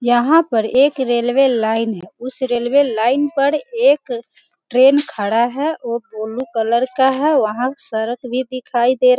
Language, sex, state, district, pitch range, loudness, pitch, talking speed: Hindi, female, Bihar, Sitamarhi, 235-270 Hz, -17 LUFS, 250 Hz, 170 wpm